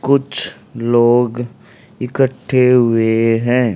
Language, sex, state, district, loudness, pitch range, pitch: Hindi, male, Haryana, Charkhi Dadri, -15 LUFS, 115-125 Hz, 120 Hz